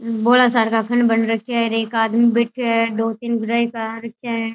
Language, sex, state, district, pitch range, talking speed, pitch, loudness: Rajasthani, female, Rajasthan, Churu, 225-235 Hz, 235 wpm, 230 Hz, -18 LUFS